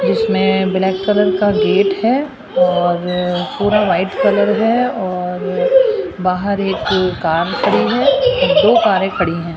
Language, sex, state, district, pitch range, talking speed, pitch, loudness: Hindi, female, Rajasthan, Jaipur, 180-215 Hz, 130 wpm, 195 Hz, -15 LUFS